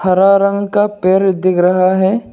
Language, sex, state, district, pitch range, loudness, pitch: Hindi, male, Arunachal Pradesh, Lower Dibang Valley, 185-200 Hz, -12 LUFS, 190 Hz